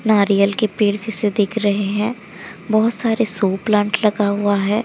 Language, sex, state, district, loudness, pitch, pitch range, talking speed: Hindi, female, Odisha, Sambalpur, -18 LUFS, 210 Hz, 200-215 Hz, 175 wpm